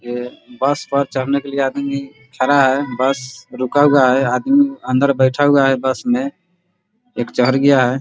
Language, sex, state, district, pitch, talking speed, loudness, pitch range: Hindi, male, Bihar, Muzaffarpur, 140 Hz, 180 wpm, -16 LUFS, 130-145 Hz